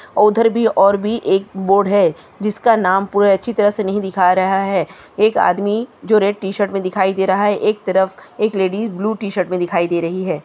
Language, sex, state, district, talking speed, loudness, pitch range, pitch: Hindi, female, Jharkhand, Sahebganj, 220 wpm, -16 LUFS, 190-210 Hz, 200 Hz